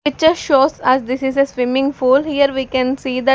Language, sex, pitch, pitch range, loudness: English, female, 270 Hz, 255-280 Hz, -16 LUFS